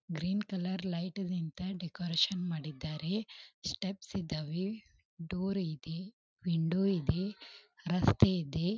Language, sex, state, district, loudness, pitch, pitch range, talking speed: Kannada, female, Karnataka, Belgaum, -35 LUFS, 180 Hz, 165-190 Hz, 95 wpm